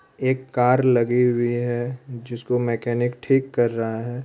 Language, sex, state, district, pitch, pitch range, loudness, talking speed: Hindi, male, Bihar, Purnia, 120 Hz, 120-125 Hz, -22 LUFS, 185 wpm